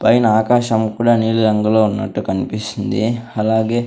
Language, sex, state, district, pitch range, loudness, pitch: Telugu, male, Andhra Pradesh, Sri Satya Sai, 105-115 Hz, -16 LUFS, 110 Hz